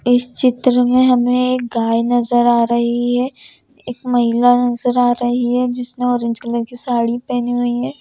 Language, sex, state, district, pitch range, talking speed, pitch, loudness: Hindi, female, Bihar, Saharsa, 240-250 Hz, 180 wpm, 245 Hz, -16 LUFS